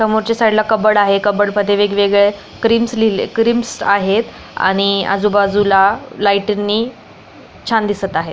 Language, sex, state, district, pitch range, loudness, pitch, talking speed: Marathi, female, Maharashtra, Pune, 200-220 Hz, -14 LUFS, 205 Hz, 120 wpm